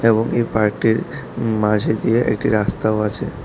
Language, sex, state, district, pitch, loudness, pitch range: Bengali, male, Tripura, South Tripura, 110 Hz, -19 LUFS, 105-115 Hz